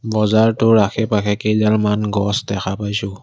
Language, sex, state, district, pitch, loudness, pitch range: Assamese, male, Assam, Kamrup Metropolitan, 105 Hz, -17 LUFS, 100-110 Hz